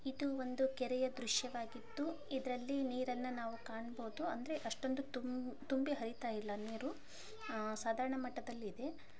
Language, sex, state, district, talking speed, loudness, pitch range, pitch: Kannada, female, Karnataka, Dharwad, 85 wpm, -42 LUFS, 230-270 Hz, 255 Hz